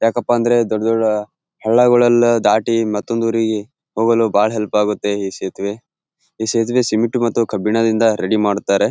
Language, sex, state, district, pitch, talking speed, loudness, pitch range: Kannada, male, Karnataka, Gulbarga, 115 Hz, 160 wpm, -16 LUFS, 105-120 Hz